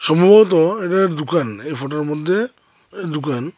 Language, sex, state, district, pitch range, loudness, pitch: Bengali, male, Tripura, Unakoti, 150-190 Hz, -17 LUFS, 165 Hz